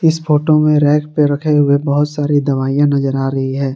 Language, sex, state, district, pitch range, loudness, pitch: Hindi, male, Jharkhand, Garhwa, 140-150 Hz, -14 LUFS, 145 Hz